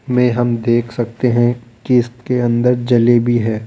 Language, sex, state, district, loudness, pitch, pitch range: Hindi, male, Rajasthan, Jaipur, -15 LUFS, 120 Hz, 120-125 Hz